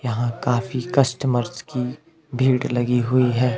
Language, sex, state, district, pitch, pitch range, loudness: Hindi, male, Himachal Pradesh, Shimla, 125 Hz, 120-130 Hz, -21 LUFS